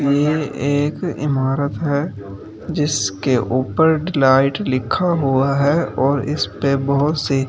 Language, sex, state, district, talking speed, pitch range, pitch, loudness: Hindi, male, Delhi, New Delhi, 120 wpm, 130-150 Hz, 140 Hz, -18 LUFS